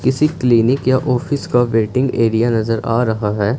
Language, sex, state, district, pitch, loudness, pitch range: Hindi, male, Punjab, Fazilka, 120 Hz, -16 LUFS, 115-130 Hz